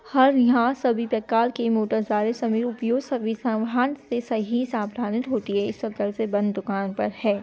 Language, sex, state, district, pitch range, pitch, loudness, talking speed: Hindi, female, Bihar, Muzaffarpur, 215-245 Hz, 230 Hz, -24 LUFS, 90 wpm